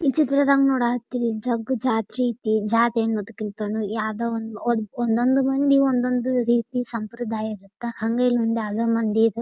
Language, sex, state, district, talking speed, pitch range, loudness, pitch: Kannada, female, Karnataka, Dharwad, 95 wpm, 220-250 Hz, -22 LUFS, 235 Hz